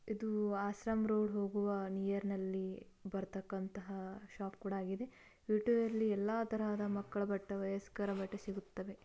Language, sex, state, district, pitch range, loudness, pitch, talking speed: Kannada, female, Karnataka, Bijapur, 195-215 Hz, -39 LUFS, 200 Hz, 125 wpm